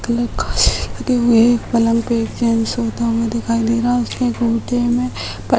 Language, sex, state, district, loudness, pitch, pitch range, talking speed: Hindi, female, Bihar, Sitamarhi, -17 LUFS, 235 Hz, 230-240 Hz, 140 wpm